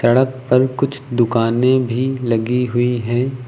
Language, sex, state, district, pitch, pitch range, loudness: Hindi, male, Uttar Pradesh, Lucknow, 125 Hz, 120-130 Hz, -17 LUFS